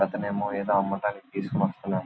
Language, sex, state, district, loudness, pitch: Telugu, male, Andhra Pradesh, Visakhapatnam, -28 LUFS, 100 Hz